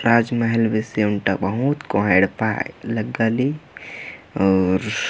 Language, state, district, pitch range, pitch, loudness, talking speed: Kurukh, Chhattisgarh, Jashpur, 95-115 Hz, 110 Hz, -20 LUFS, 120 wpm